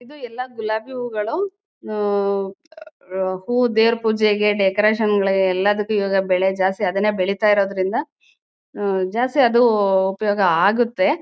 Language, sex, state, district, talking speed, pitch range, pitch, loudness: Kannada, female, Karnataka, Chamarajanagar, 130 wpm, 195-240 Hz, 210 Hz, -19 LUFS